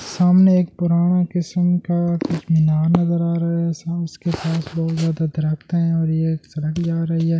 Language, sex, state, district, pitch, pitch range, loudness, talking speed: Hindi, male, Delhi, New Delhi, 165 Hz, 160-175 Hz, -19 LUFS, 205 wpm